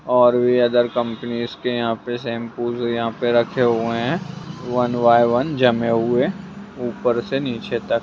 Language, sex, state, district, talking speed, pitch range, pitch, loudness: Hindi, male, Bihar, Jamui, 170 wpm, 120-125 Hz, 120 Hz, -20 LUFS